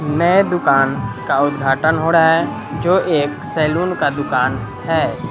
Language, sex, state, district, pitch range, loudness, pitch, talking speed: Hindi, female, Bihar, West Champaran, 135-165 Hz, -16 LUFS, 155 Hz, 135 wpm